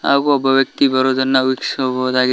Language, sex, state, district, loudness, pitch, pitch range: Kannada, male, Karnataka, Koppal, -16 LUFS, 130 Hz, 130-135 Hz